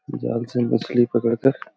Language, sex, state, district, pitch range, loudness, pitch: Hindi, male, Jharkhand, Jamtara, 115-120 Hz, -21 LUFS, 120 Hz